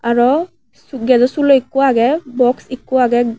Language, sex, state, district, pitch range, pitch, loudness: Chakma, female, Tripura, West Tripura, 245-270 Hz, 255 Hz, -14 LUFS